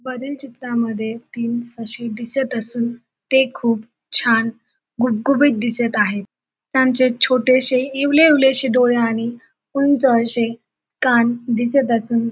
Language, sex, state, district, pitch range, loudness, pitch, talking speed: Marathi, female, Maharashtra, Dhule, 230-260 Hz, -18 LUFS, 240 Hz, 120 wpm